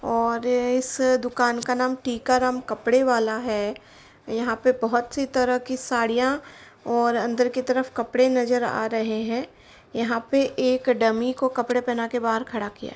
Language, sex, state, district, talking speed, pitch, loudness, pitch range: Hindi, female, Uttar Pradesh, Jalaun, 175 wpm, 245 Hz, -23 LUFS, 230-255 Hz